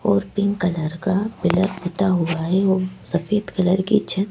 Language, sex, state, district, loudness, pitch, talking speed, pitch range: Hindi, female, Madhya Pradesh, Bhopal, -21 LUFS, 185 Hz, 195 wpm, 175-195 Hz